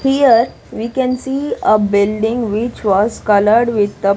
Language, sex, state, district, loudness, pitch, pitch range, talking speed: English, female, Punjab, Kapurthala, -15 LUFS, 225 Hz, 205-245 Hz, 170 wpm